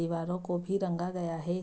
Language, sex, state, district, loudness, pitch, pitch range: Hindi, female, Bihar, Saharsa, -33 LUFS, 175 Hz, 170-180 Hz